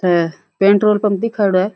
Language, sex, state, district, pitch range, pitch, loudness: Rajasthani, female, Rajasthan, Nagaur, 185-210 Hz, 200 Hz, -15 LUFS